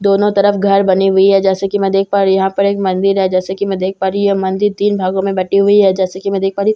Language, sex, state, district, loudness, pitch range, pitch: Hindi, female, Bihar, Katihar, -13 LUFS, 190-200 Hz, 195 Hz